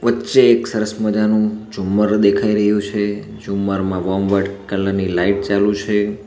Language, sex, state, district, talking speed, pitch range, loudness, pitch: Gujarati, male, Gujarat, Valsad, 155 wpm, 100-105 Hz, -17 LUFS, 105 Hz